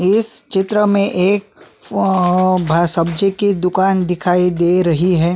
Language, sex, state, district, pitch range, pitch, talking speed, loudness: Hindi, male, Chhattisgarh, Sukma, 180-195 Hz, 185 Hz, 145 wpm, -15 LUFS